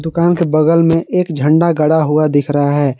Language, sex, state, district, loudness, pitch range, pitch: Hindi, male, Jharkhand, Garhwa, -13 LUFS, 145-165 Hz, 155 Hz